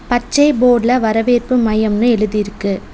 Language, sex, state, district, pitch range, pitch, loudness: Tamil, female, Tamil Nadu, Nilgiris, 215-245 Hz, 235 Hz, -14 LUFS